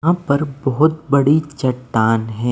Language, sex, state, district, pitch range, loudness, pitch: Hindi, male, Maharashtra, Mumbai Suburban, 125-150 Hz, -17 LUFS, 140 Hz